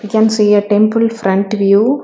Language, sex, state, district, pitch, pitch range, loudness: English, female, Telangana, Hyderabad, 210 Hz, 205-220 Hz, -12 LUFS